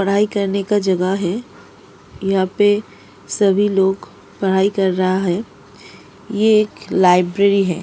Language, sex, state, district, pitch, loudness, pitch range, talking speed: Hindi, female, Delhi, New Delhi, 195 Hz, -17 LUFS, 190-205 Hz, 130 wpm